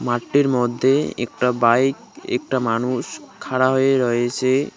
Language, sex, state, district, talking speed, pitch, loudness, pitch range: Bengali, male, West Bengal, Cooch Behar, 115 wpm, 130 Hz, -19 LUFS, 120-130 Hz